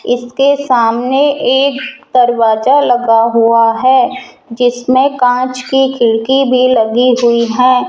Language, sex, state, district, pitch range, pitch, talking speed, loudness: Hindi, female, Rajasthan, Jaipur, 235-265 Hz, 250 Hz, 115 wpm, -11 LUFS